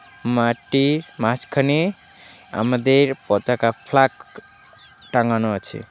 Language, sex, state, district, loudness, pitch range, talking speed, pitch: Bengali, male, West Bengal, Alipurduar, -20 LUFS, 115-140 Hz, 70 wpm, 125 Hz